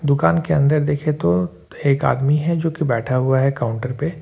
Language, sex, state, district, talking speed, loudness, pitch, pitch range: Hindi, male, Jharkhand, Ranchi, 215 wpm, -19 LUFS, 140 Hz, 120-150 Hz